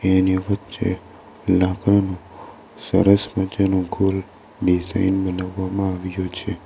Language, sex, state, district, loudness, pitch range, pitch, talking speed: Gujarati, male, Gujarat, Valsad, -21 LUFS, 95-100 Hz, 95 Hz, 90 wpm